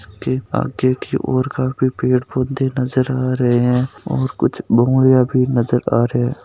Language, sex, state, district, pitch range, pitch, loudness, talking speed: Hindi, male, Rajasthan, Nagaur, 120-130 Hz, 130 Hz, -17 LUFS, 170 wpm